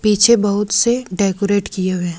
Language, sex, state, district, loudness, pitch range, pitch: Hindi, female, Jharkhand, Ranchi, -16 LUFS, 190-210 Hz, 205 Hz